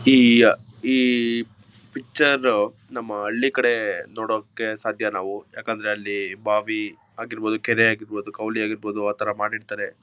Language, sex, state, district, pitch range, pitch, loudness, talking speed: Kannada, male, Karnataka, Mysore, 105-115 Hz, 110 Hz, -22 LUFS, 115 wpm